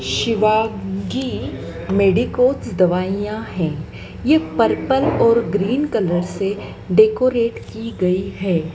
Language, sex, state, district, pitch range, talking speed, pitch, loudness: Hindi, female, Madhya Pradesh, Dhar, 180-230 Hz, 105 wpm, 200 Hz, -18 LUFS